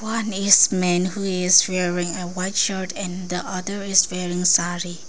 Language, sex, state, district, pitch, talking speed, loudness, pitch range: English, female, Arunachal Pradesh, Lower Dibang Valley, 185 Hz, 175 wpm, -20 LUFS, 180-195 Hz